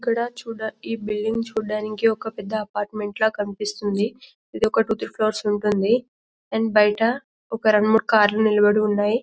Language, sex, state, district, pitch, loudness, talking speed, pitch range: Telugu, female, Telangana, Karimnagar, 215 Hz, -22 LUFS, 165 wpm, 210-225 Hz